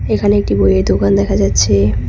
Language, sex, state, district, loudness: Bengali, female, West Bengal, Cooch Behar, -13 LUFS